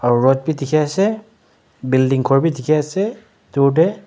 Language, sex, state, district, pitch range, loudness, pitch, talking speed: Nagamese, male, Nagaland, Dimapur, 135-195 Hz, -17 LUFS, 155 Hz, 145 wpm